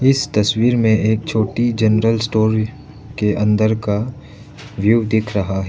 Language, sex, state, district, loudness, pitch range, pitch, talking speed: Hindi, male, Arunachal Pradesh, Lower Dibang Valley, -17 LUFS, 105-120 Hz, 110 Hz, 145 wpm